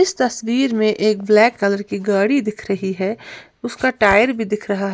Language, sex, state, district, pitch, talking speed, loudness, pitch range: Hindi, female, Uttar Pradesh, Lalitpur, 215 Hz, 205 wpm, -17 LUFS, 200-240 Hz